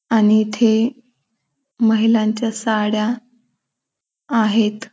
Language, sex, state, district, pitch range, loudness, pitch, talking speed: Marathi, female, Maharashtra, Pune, 215-235 Hz, -17 LUFS, 225 Hz, 60 wpm